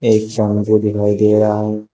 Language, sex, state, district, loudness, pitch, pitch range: Hindi, male, Uttar Pradesh, Shamli, -15 LUFS, 105 Hz, 105-110 Hz